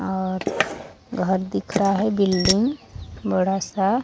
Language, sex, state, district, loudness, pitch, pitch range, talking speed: Hindi, female, Odisha, Sambalpur, -22 LUFS, 195 Hz, 190-205 Hz, 120 wpm